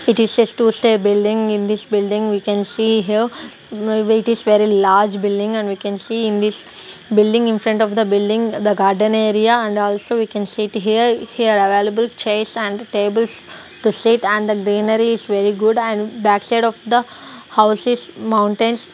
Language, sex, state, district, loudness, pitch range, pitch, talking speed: English, female, Punjab, Kapurthala, -17 LUFS, 205-225 Hz, 215 Hz, 185 wpm